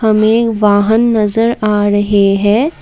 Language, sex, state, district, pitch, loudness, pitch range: Hindi, female, Assam, Kamrup Metropolitan, 215 Hz, -11 LUFS, 205-225 Hz